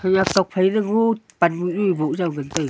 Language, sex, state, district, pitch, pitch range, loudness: Wancho, female, Arunachal Pradesh, Longding, 185 Hz, 170-200 Hz, -20 LUFS